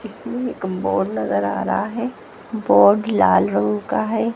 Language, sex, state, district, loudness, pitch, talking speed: Hindi, female, Haryana, Jhajjar, -19 LUFS, 200 Hz, 165 wpm